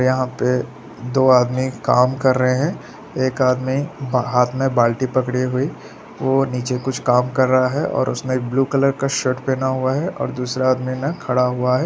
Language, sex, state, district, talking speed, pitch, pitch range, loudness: Hindi, male, Bihar, Araria, 190 wpm, 130 Hz, 125-135 Hz, -19 LUFS